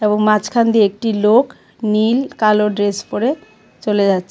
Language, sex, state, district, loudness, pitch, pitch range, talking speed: Bengali, female, Tripura, West Tripura, -16 LUFS, 215 Hz, 210-235 Hz, 165 wpm